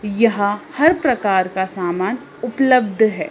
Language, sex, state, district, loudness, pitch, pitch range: Hindi, female, Madhya Pradesh, Bhopal, -18 LUFS, 210 Hz, 190-250 Hz